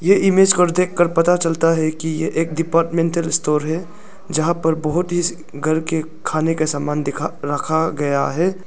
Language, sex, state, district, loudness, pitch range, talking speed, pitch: Hindi, male, Arunachal Pradesh, Lower Dibang Valley, -18 LUFS, 155-175 Hz, 185 wpm, 165 Hz